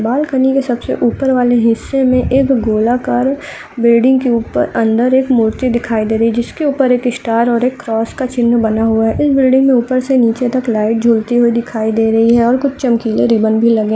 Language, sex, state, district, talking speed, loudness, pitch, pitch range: Hindi, female, Uttar Pradesh, Ghazipur, 225 wpm, -13 LUFS, 240 Hz, 225-260 Hz